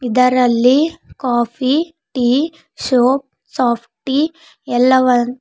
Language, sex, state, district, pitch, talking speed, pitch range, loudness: Kannada, female, Karnataka, Bidar, 255 Hz, 80 wpm, 245-285 Hz, -16 LUFS